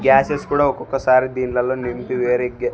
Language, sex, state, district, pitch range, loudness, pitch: Telugu, male, Andhra Pradesh, Sri Satya Sai, 125-135 Hz, -19 LUFS, 130 Hz